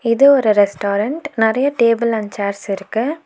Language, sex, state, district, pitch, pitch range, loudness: Tamil, female, Tamil Nadu, Nilgiris, 225 Hz, 205-275 Hz, -16 LUFS